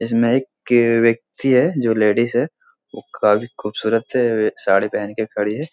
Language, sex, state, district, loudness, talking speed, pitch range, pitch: Hindi, male, Bihar, Jahanabad, -18 LUFS, 180 wpm, 110-125 Hz, 115 Hz